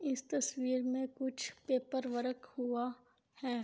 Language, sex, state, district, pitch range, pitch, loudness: Urdu, female, Andhra Pradesh, Anantapur, 250-260 Hz, 255 Hz, -38 LUFS